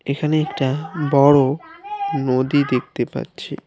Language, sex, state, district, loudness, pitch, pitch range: Bengali, male, West Bengal, Alipurduar, -19 LUFS, 145 Hz, 135-160 Hz